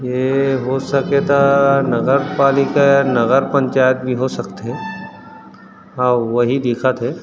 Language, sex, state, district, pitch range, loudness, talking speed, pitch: Chhattisgarhi, male, Chhattisgarh, Rajnandgaon, 125-140 Hz, -16 LUFS, 125 wpm, 130 Hz